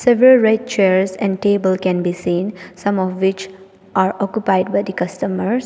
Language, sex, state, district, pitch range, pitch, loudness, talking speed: English, female, Arunachal Pradesh, Papum Pare, 185-205 Hz, 190 Hz, -17 LUFS, 170 wpm